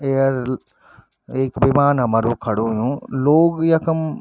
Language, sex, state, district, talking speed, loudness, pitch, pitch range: Garhwali, male, Uttarakhand, Tehri Garhwal, 140 wpm, -18 LUFS, 135 Hz, 125-145 Hz